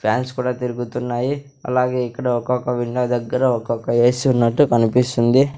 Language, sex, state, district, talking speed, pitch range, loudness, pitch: Telugu, male, Andhra Pradesh, Sri Satya Sai, 130 wpm, 120-125 Hz, -19 LUFS, 125 Hz